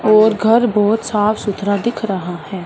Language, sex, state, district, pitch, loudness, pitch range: Hindi, male, Punjab, Fazilka, 210 Hz, -16 LUFS, 200-220 Hz